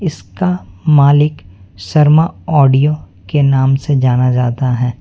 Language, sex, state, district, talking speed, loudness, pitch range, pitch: Hindi, male, West Bengal, Alipurduar, 120 wpm, -13 LUFS, 125-150 Hz, 140 Hz